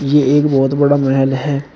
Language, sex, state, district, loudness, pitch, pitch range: Hindi, male, Uttar Pradesh, Shamli, -14 LUFS, 140 Hz, 135-145 Hz